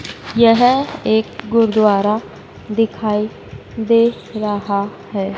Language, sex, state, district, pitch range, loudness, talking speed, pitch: Hindi, female, Madhya Pradesh, Dhar, 210-230 Hz, -17 LUFS, 80 wpm, 220 Hz